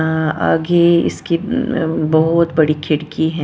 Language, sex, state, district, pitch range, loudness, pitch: Hindi, female, Punjab, Kapurthala, 155-170 Hz, -16 LUFS, 160 Hz